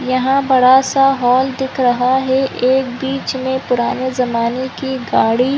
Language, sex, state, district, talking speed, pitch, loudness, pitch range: Hindi, female, Chhattisgarh, Korba, 140 wpm, 260 Hz, -15 LUFS, 250-265 Hz